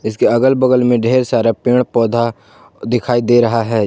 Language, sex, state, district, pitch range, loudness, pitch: Hindi, male, Jharkhand, Ranchi, 115-125 Hz, -14 LUFS, 120 Hz